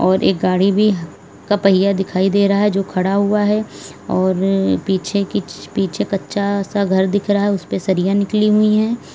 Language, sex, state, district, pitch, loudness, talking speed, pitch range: Hindi, female, Uttar Pradesh, Lalitpur, 200 Hz, -17 LUFS, 195 wpm, 190-205 Hz